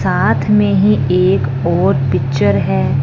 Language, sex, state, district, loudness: Hindi, male, Punjab, Fazilka, -14 LUFS